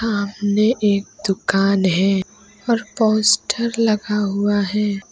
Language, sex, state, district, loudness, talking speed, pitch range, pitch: Hindi, female, West Bengal, Alipurduar, -18 LUFS, 105 wpm, 200-220 Hz, 205 Hz